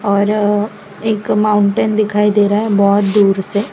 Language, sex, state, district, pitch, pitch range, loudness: Hindi, female, Gujarat, Valsad, 205 Hz, 200-210 Hz, -14 LUFS